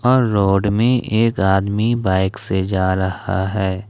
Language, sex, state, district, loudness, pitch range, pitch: Hindi, male, Jharkhand, Ranchi, -18 LUFS, 95-110 Hz, 100 Hz